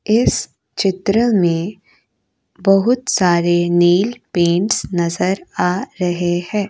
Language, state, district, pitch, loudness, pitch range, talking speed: Hindi, Arunachal Pradesh, Papum Pare, 185 Hz, -17 LUFS, 175-210 Hz, 90 wpm